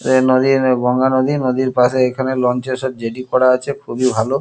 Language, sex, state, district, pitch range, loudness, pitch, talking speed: Bengali, male, West Bengal, Kolkata, 125-130 Hz, -16 LUFS, 130 Hz, 190 wpm